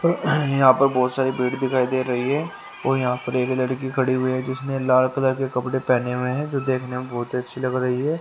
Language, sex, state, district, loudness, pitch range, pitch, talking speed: Hindi, male, Haryana, Rohtak, -22 LUFS, 125-135 Hz, 130 Hz, 240 wpm